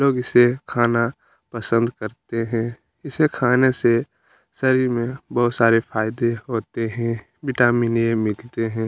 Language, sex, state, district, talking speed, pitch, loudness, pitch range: Hindi, male, Chhattisgarh, Kabirdham, 135 wpm, 120 Hz, -21 LUFS, 115-125 Hz